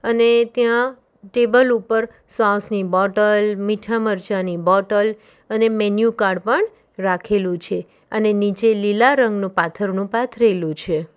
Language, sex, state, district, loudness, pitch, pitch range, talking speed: Gujarati, female, Gujarat, Valsad, -18 LUFS, 210 Hz, 195-230 Hz, 125 wpm